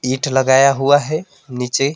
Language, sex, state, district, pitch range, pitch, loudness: Hindi, male, West Bengal, Alipurduar, 130-145 Hz, 135 Hz, -15 LUFS